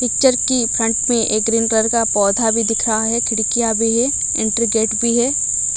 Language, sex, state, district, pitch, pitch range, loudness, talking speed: Hindi, female, Odisha, Malkangiri, 230 Hz, 220-235 Hz, -14 LUFS, 210 wpm